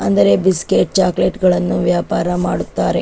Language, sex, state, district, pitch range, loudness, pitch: Kannada, female, Karnataka, Chamarajanagar, 160-185 Hz, -15 LUFS, 180 Hz